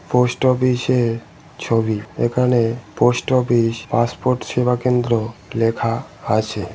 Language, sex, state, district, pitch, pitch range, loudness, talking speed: Bengali, male, West Bengal, Malda, 120 Hz, 115-125 Hz, -19 LUFS, 105 wpm